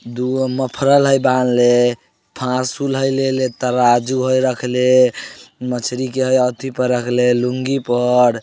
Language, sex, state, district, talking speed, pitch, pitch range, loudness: Maithili, male, Bihar, Samastipur, 135 wpm, 125 Hz, 125-130 Hz, -16 LUFS